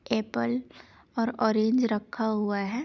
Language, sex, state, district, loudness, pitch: Hindi, female, Chhattisgarh, Sarguja, -28 LUFS, 215 Hz